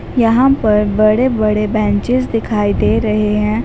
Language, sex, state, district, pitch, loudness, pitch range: Hindi, female, Haryana, Jhajjar, 215 Hz, -14 LUFS, 210-235 Hz